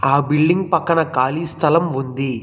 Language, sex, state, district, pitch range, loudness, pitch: Telugu, male, Telangana, Hyderabad, 135-165 Hz, -18 LUFS, 150 Hz